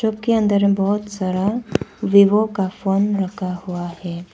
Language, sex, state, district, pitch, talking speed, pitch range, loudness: Hindi, female, Arunachal Pradesh, Papum Pare, 200 Hz, 150 wpm, 185-210 Hz, -19 LUFS